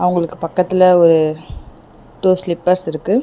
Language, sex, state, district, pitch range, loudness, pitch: Tamil, female, Tamil Nadu, Chennai, 160-180 Hz, -15 LUFS, 175 Hz